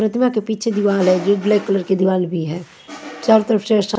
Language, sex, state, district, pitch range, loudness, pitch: Hindi, female, Punjab, Fazilka, 190-220 Hz, -17 LUFS, 205 Hz